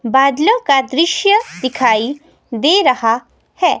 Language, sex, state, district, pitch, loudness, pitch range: Hindi, female, Himachal Pradesh, Shimla, 270 Hz, -14 LUFS, 245-330 Hz